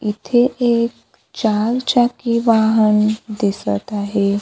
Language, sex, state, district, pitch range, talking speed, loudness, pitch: Marathi, female, Maharashtra, Gondia, 210-235 Hz, 95 wpm, -17 LUFS, 220 Hz